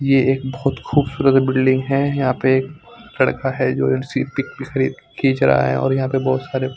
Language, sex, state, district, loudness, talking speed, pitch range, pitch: Hindi, male, Punjab, Fazilka, -18 LUFS, 215 wpm, 130-135 Hz, 130 Hz